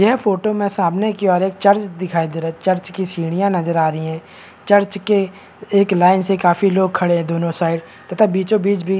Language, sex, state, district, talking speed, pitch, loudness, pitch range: Hindi, male, Bihar, Kishanganj, 240 wpm, 190 Hz, -17 LUFS, 175-200 Hz